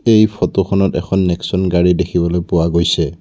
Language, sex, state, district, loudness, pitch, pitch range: Assamese, male, Assam, Kamrup Metropolitan, -15 LUFS, 90 Hz, 85-95 Hz